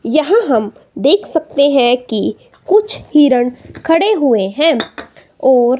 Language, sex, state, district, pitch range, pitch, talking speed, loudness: Hindi, female, Himachal Pradesh, Shimla, 245-325 Hz, 280 Hz, 125 wpm, -13 LUFS